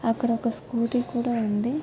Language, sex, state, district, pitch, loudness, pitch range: Telugu, female, Telangana, Nalgonda, 235 Hz, -26 LUFS, 230-245 Hz